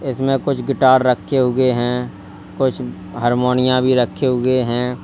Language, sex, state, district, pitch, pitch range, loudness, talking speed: Hindi, male, Uttar Pradesh, Lalitpur, 125 Hz, 120-130 Hz, -17 LUFS, 145 wpm